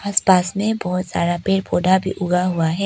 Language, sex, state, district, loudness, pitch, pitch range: Hindi, female, Arunachal Pradesh, Papum Pare, -19 LUFS, 185 Hz, 180-195 Hz